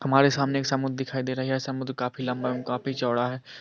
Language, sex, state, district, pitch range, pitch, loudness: Hindi, male, Andhra Pradesh, Krishna, 125-135 Hz, 130 Hz, -27 LUFS